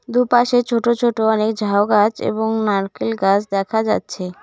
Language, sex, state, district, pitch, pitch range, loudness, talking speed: Bengali, female, West Bengal, Cooch Behar, 215 Hz, 200-235 Hz, -18 LUFS, 150 wpm